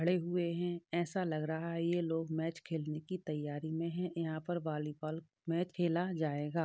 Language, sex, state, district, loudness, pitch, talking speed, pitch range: Hindi, male, Bihar, Jamui, -37 LUFS, 165 Hz, 190 wpm, 155-175 Hz